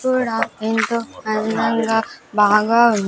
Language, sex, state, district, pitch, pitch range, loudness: Telugu, female, Andhra Pradesh, Sri Satya Sai, 225 Hz, 215-235 Hz, -18 LUFS